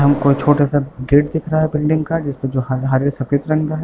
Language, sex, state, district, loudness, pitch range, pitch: Hindi, male, Bihar, Lakhisarai, -17 LUFS, 135-155 Hz, 145 Hz